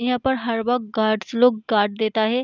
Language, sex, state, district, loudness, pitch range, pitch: Hindi, female, Bihar, Saharsa, -21 LUFS, 220-250 Hz, 230 Hz